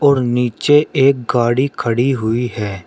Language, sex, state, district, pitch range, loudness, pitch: Hindi, male, Uttar Pradesh, Shamli, 115-135 Hz, -16 LUFS, 125 Hz